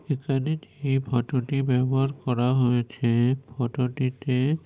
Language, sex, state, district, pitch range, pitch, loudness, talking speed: Bengali, male, West Bengal, North 24 Parganas, 125-135 Hz, 130 Hz, -25 LUFS, 130 wpm